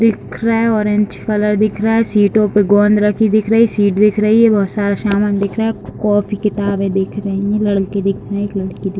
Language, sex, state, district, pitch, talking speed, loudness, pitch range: Hindi, female, Uttar Pradesh, Deoria, 210 Hz, 240 wpm, -15 LUFS, 200-215 Hz